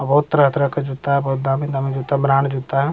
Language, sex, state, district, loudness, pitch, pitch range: Hindi, male, Bihar, Jamui, -19 LUFS, 140 Hz, 135-140 Hz